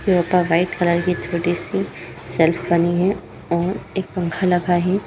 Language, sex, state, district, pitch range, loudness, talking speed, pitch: Hindi, female, Uttar Pradesh, Etah, 170-180 Hz, -20 LUFS, 180 wpm, 175 Hz